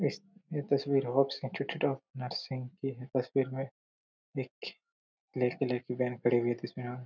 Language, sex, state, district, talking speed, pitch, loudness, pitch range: Hindi, male, Chhattisgarh, Korba, 185 wpm, 130 Hz, -34 LUFS, 125-140 Hz